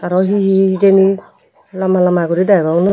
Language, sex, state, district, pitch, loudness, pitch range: Chakma, female, Tripura, Unakoti, 190 Hz, -13 LUFS, 180-195 Hz